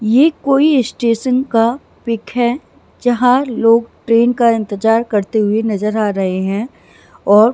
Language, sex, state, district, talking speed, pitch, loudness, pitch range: Hindi, female, Maharashtra, Mumbai Suburban, 145 wpm, 230 Hz, -15 LUFS, 215-250 Hz